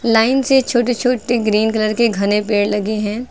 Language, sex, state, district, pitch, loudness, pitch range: Hindi, female, Uttar Pradesh, Lucknow, 225 Hz, -16 LUFS, 210-245 Hz